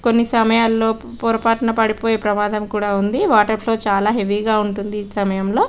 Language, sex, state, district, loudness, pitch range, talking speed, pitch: Telugu, female, Telangana, Karimnagar, -18 LUFS, 205-225 Hz, 170 wpm, 215 Hz